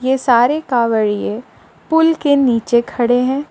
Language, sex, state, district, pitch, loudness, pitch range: Hindi, female, Jharkhand, Palamu, 250 Hz, -15 LUFS, 235-285 Hz